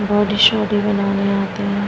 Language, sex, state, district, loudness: Hindi, female, Bihar, Vaishali, -17 LUFS